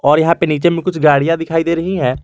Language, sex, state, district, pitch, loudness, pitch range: Hindi, male, Jharkhand, Garhwa, 165 Hz, -14 LUFS, 150-170 Hz